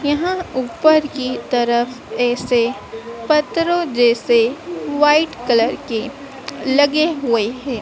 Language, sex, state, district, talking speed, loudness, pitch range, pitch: Hindi, female, Madhya Pradesh, Dhar, 100 wpm, -17 LUFS, 240-300 Hz, 260 Hz